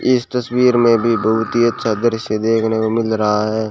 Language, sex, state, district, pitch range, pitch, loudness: Hindi, male, Rajasthan, Bikaner, 110-120 Hz, 115 Hz, -16 LUFS